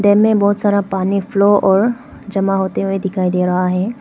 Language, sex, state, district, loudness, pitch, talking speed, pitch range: Hindi, female, Arunachal Pradesh, Lower Dibang Valley, -15 LUFS, 195 Hz, 210 wpm, 190-205 Hz